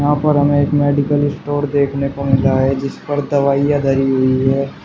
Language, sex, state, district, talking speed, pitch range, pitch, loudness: Hindi, male, Uttar Pradesh, Shamli, 210 wpm, 135-145 Hz, 140 Hz, -16 LUFS